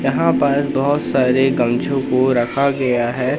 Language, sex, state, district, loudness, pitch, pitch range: Hindi, male, Madhya Pradesh, Katni, -17 LUFS, 130 Hz, 120-140 Hz